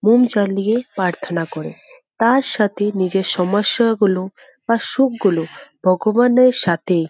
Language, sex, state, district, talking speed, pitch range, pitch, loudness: Bengali, female, West Bengal, Dakshin Dinajpur, 120 wpm, 185-240 Hz, 205 Hz, -17 LUFS